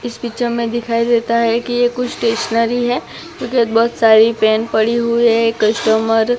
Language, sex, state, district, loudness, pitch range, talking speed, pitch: Hindi, female, Gujarat, Gandhinagar, -15 LUFS, 225-240 Hz, 185 wpm, 230 Hz